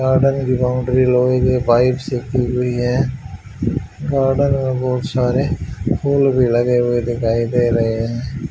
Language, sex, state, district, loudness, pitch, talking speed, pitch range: Hindi, male, Haryana, Charkhi Dadri, -17 LUFS, 125 Hz, 150 wpm, 120-130 Hz